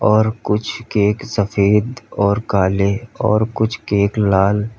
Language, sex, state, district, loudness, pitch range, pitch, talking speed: Hindi, male, Uttar Pradesh, Lalitpur, -17 LUFS, 100-110 Hz, 105 Hz, 125 wpm